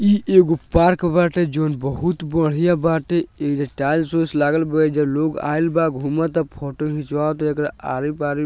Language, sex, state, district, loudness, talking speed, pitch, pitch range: Bhojpuri, male, Bihar, Muzaffarpur, -19 LUFS, 155 wpm, 155 Hz, 150-165 Hz